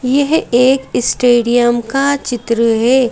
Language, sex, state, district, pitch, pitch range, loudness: Hindi, female, Madhya Pradesh, Bhopal, 245 Hz, 240-270 Hz, -13 LUFS